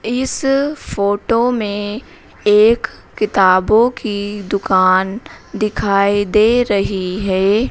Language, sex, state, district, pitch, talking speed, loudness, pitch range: Hindi, female, Madhya Pradesh, Dhar, 210 Hz, 85 wpm, -15 LUFS, 200-235 Hz